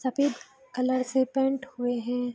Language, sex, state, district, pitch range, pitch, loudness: Hindi, female, Bihar, Araria, 245-265 Hz, 255 Hz, -28 LUFS